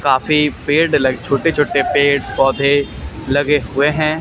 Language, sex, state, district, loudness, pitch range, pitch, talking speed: Hindi, male, Haryana, Charkhi Dadri, -15 LUFS, 140-150 Hz, 145 Hz, 115 wpm